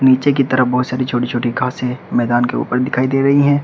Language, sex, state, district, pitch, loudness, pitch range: Hindi, male, Uttar Pradesh, Shamli, 130 Hz, -16 LUFS, 125-135 Hz